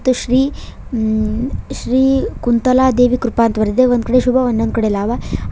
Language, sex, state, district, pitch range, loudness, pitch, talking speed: Kannada, female, Karnataka, Koppal, 225-255 Hz, -15 LUFS, 245 Hz, 140 wpm